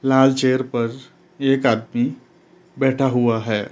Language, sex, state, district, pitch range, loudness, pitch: Hindi, male, Himachal Pradesh, Shimla, 120-135 Hz, -19 LUFS, 130 Hz